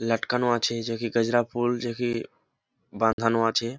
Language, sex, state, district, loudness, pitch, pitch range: Bengali, male, West Bengal, Jhargram, -25 LUFS, 115 Hz, 115-120 Hz